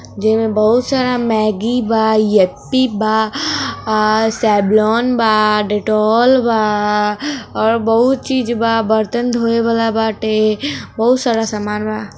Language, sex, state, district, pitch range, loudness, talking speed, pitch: Hindi, female, Bihar, East Champaran, 215-240 Hz, -15 LUFS, 125 wpm, 220 Hz